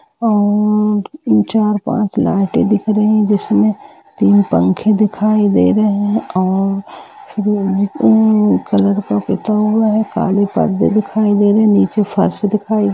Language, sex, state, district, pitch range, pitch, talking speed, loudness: Hindi, female, Jharkhand, Jamtara, 195-215 Hz, 205 Hz, 150 wpm, -14 LUFS